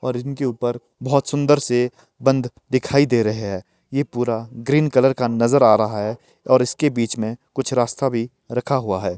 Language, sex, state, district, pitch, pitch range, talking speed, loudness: Hindi, male, Himachal Pradesh, Shimla, 125 Hz, 115-135 Hz, 195 wpm, -20 LUFS